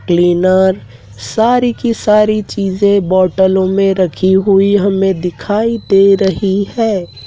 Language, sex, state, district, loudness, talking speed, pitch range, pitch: Hindi, male, Madhya Pradesh, Dhar, -12 LUFS, 115 wpm, 185-205 Hz, 195 Hz